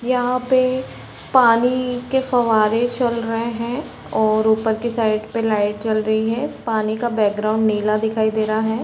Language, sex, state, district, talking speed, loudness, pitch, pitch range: Hindi, female, Chhattisgarh, Raigarh, 170 wpm, -19 LUFS, 225 Hz, 215-245 Hz